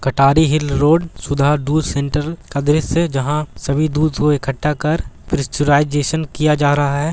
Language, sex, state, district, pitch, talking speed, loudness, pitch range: Hindi, male, Bihar, Gaya, 150 Hz, 160 wpm, -17 LUFS, 140-155 Hz